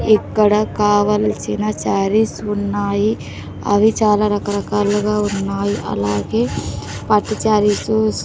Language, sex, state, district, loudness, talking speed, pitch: Telugu, female, Andhra Pradesh, Sri Satya Sai, -17 LUFS, 85 wpm, 205 Hz